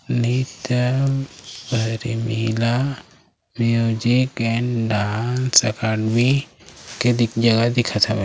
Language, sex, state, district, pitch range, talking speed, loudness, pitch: Chhattisgarhi, male, Chhattisgarh, Raigarh, 110-125 Hz, 60 wpm, -20 LUFS, 115 Hz